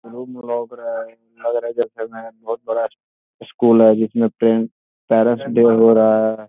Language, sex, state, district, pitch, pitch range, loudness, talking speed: Hindi, male, Bihar, Gopalganj, 115 Hz, 115-120 Hz, -17 LUFS, 195 wpm